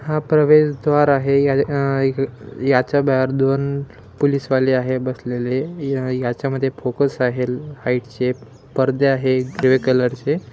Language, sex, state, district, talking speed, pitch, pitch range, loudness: Marathi, male, Maharashtra, Dhule, 105 wpm, 135 Hz, 130-140 Hz, -19 LUFS